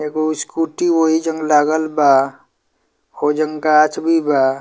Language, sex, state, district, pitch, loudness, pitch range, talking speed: Bhojpuri, male, Bihar, Muzaffarpur, 155 Hz, -16 LUFS, 150-160 Hz, 130 wpm